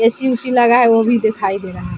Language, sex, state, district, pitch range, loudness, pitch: Hindi, female, Bihar, Vaishali, 220-245 Hz, -14 LUFS, 235 Hz